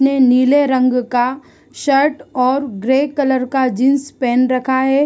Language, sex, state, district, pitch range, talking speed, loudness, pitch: Hindi, female, Bihar, East Champaran, 255-275 Hz, 165 wpm, -15 LUFS, 265 Hz